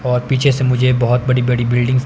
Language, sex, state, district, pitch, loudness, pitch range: Hindi, male, Himachal Pradesh, Shimla, 125 Hz, -15 LUFS, 125-130 Hz